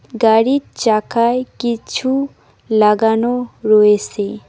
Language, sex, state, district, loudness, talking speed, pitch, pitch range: Bengali, female, West Bengal, Cooch Behar, -15 LUFS, 65 wpm, 225 Hz, 215-245 Hz